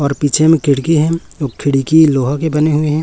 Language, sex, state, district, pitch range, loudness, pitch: Hindi, male, Chhattisgarh, Raipur, 140-160 Hz, -13 LUFS, 150 Hz